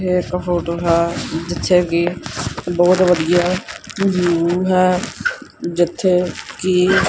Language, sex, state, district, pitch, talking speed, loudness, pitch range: Punjabi, male, Punjab, Kapurthala, 180 Hz, 100 wpm, -17 LUFS, 170-185 Hz